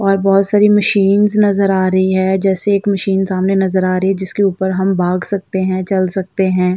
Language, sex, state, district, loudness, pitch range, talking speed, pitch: Hindi, female, Uttar Pradesh, Jalaun, -14 LUFS, 185-200 Hz, 220 wpm, 190 Hz